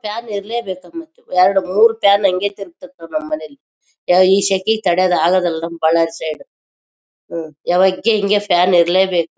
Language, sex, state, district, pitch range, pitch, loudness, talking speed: Kannada, female, Karnataka, Bellary, 165-200 Hz, 185 Hz, -16 LUFS, 145 wpm